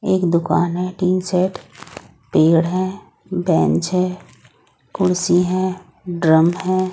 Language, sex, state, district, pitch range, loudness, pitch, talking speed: Hindi, female, Odisha, Nuapada, 175-185 Hz, -18 LUFS, 180 Hz, 120 wpm